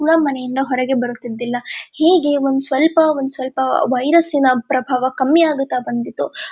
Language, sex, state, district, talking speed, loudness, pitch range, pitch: Kannada, female, Karnataka, Dharwad, 130 wpm, -17 LUFS, 255-295 Hz, 265 Hz